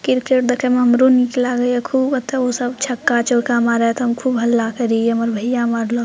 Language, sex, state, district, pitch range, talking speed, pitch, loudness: Maithili, female, Bihar, Purnia, 235-250 Hz, 230 wpm, 245 Hz, -17 LUFS